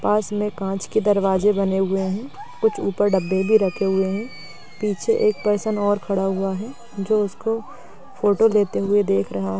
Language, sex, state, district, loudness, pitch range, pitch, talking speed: Hindi, female, Bihar, Samastipur, -21 LUFS, 190-215 Hz, 205 Hz, 190 wpm